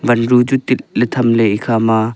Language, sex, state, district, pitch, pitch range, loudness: Wancho, male, Arunachal Pradesh, Longding, 120 Hz, 115-125 Hz, -14 LUFS